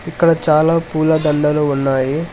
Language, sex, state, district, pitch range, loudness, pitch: Telugu, male, Telangana, Hyderabad, 150-165 Hz, -15 LUFS, 155 Hz